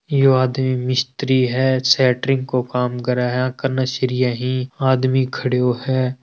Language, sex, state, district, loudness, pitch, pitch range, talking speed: Marwari, male, Rajasthan, Churu, -19 LUFS, 130 Hz, 125-130 Hz, 145 wpm